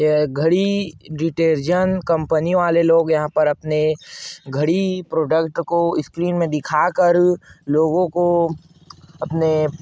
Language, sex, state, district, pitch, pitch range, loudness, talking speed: Hindi, male, Chhattisgarh, Korba, 165 Hz, 155-175 Hz, -19 LUFS, 110 wpm